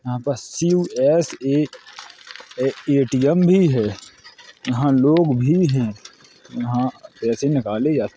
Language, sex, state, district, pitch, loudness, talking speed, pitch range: Hindi, male, Uttar Pradesh, Jalaun, 135 Hz, -19 LUFS, 95 wpm, 125-155 Hz